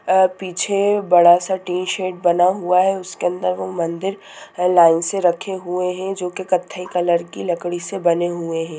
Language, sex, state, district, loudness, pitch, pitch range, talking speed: Hindi, female, Bihar, Sitamarhi, -19 LUFS, 180 Hz, 175-190 Hz, 200 wpm